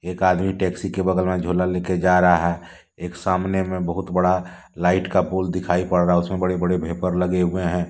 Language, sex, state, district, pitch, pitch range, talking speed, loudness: Hindi, male, Jharkhand, Deoghar, 90 Hz, 90-95 Hz, 230 wpm, -21 LUFS